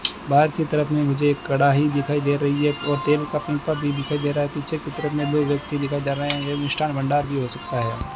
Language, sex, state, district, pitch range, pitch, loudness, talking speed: Hindi, male, Rajasthan, Bikaner, 140-150 Hz, 145 Hz, -22 LUFS, 255 wpm